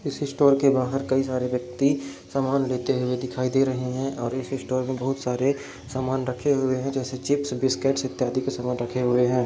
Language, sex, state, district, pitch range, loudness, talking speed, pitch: Hindi, male, Chhattisgarh, Bilaspur, 125-135 Hz, -25 LUFS, 210 wpm, 130 Hz